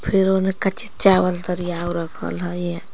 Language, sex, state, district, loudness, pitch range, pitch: Magahi, female, Jharkhand, Palamu, -20 LUFS, 175-190 Hz, 180 Hz